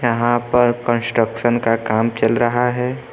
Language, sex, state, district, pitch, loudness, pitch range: Hindi, male, Uttar Pradesh, Lucknow, 120 Hz, -18 LUFS, 115-120 Hz